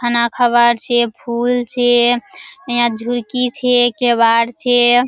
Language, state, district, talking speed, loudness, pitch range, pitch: Surjapuri, Bihar, Kishanganj, 120 wpm, -15 LUFS, 235-245 Hz, 240 Hz